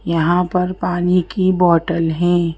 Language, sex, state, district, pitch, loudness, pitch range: Hindi, female, Madhya Pradesh, Bhopal, 175 Hz, -16 LUFS, 170-180 Hz